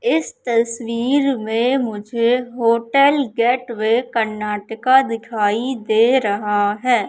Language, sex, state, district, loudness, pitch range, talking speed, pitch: Hindi, female, Madhya Pradesh, Katni, -18 LUFS, 220-250 Hz, 95 wpm, 230 Hz